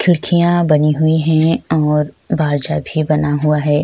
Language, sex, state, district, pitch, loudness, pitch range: Hindi, female, Chhattisgarh, Sukma, 155 Hz, -15 LUFS, 150-160 Hz